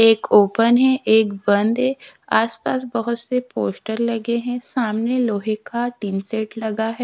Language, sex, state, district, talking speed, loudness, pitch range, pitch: Hindi, female, Odisha, Sambalpur, 160 wpm, -20 LUFS, 215-245 Hz, 230 Hz